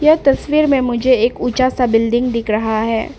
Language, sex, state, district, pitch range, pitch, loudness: Hindi, female, Arunachal Pradesh, Papum Pare, 230-265 Hz, 245 Hz, -15 LUFS